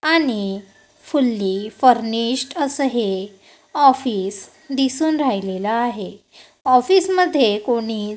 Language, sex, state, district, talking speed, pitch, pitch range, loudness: Marathi, female, Maharashtra, Gondia, 90 wpm, 240 Hz, 205-275 Hz, -19 LUFS